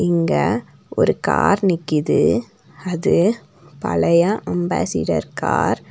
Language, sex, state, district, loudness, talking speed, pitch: Tamil, female, Tamil Nadu, Nilgiris, -19 LUFS, 90 wpm, 170 Hz